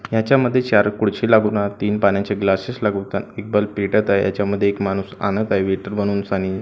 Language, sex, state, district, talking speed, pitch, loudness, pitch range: Marathi, male, Maharashtra, Gondia, 190 wpm, 100 Hz, -19 LUFS, 100-105 Hz